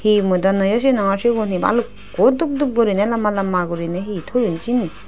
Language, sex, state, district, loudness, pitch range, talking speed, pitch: Chakma, female, Tripura, Dhalai, -18 LUFS, 190-235 Hz, 200 wpm, 210 Hz